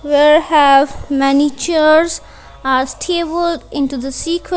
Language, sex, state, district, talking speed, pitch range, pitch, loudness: English, female, Punjab, Kapurthala, 120 wpm, 275-330 Hz, 295 Hz, -14 LUFS